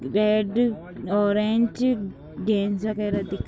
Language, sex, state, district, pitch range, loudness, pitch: Hindi, female, Jharkhand, Jamtara, 200-215 Hz, -24 LUFS, 210 Hz